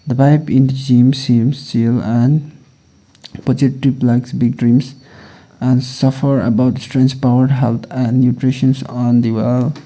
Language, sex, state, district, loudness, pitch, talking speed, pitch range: English, male, Sikkim, Gangtok, -14 LUFS, 130 Hz, 120 wpm, 120-135 Hz